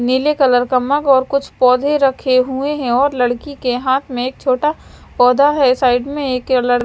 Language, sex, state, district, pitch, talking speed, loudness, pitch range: Hindi, female, Himachal Pradesh, Shimla, 260 Hz, 200 wpm, -15 LUFS, 250-280 Hz